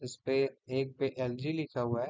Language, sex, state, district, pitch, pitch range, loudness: Hindi, male, Uttar Pradesh, Deoria, 130 Hz, 125-135 Hz, -34 LUFS